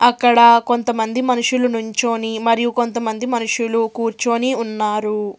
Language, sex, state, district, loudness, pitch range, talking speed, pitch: Telugu, female, Telangana, Hyderabad, -17 LUFS, 225-240 Hz, 100 wpm, 235 Hz